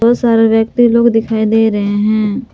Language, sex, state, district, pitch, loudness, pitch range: Hindi, female, Jharkhand, Palamu, 225 Hz, -12 LUFS, 215-235 Hz